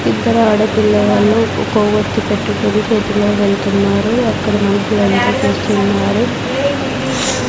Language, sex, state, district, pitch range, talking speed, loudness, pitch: Telugu, female, Andhra Pradesh, Sri Satya Sai, 200-215 Hz, 90 wpm, -14 LUFS, 210 Hz